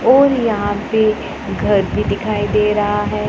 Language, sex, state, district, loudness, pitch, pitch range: Hindi, female, Punjab, Pathankot, -16 LUFS, 215 Hz, 205-235 Hz